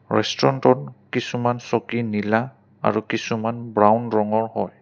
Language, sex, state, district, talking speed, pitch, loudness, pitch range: Assamese, male, Assam, Kamrup Metropolitan, 110 wpm, 110 Hz, -22 LUFS, 105-115 Hz